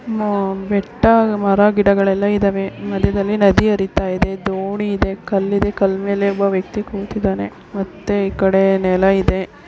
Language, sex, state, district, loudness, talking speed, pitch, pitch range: Kannada, female, Karnataka, Belgaum, -17 LUFS, 135 wpm, 200 Hz, 195-205 Hz